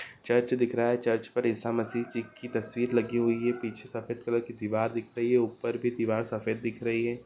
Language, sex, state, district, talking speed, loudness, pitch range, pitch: Marwari, male, Rajasthan, Nagaur, 225 wpm, -30 LUFS, 115-120 Hz, 120 Hz